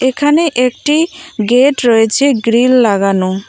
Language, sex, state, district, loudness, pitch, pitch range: Bengali, female, West Bengal, Cooch Behar, -11 LUFS, 250 Hz, 225-285 Hz